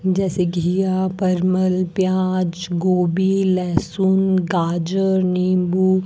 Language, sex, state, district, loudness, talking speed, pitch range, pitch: Hindi, female, Rajasthan, Bikaner, -19 LUFS, 90 wpm, 180-190 Hz, 185 Hz